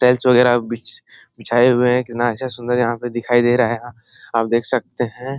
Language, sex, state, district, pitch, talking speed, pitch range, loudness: Hindi, male, Bihar, Jahanabad, 120 Hz, 210 wpm, 115-125 Hz, -18 LUFS